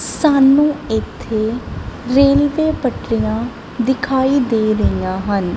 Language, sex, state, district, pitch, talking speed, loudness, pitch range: Punjabi, female, Punjab, Kapurthala, 245 Hz, 85 wpm, -16 LUFS, 215-280 Hz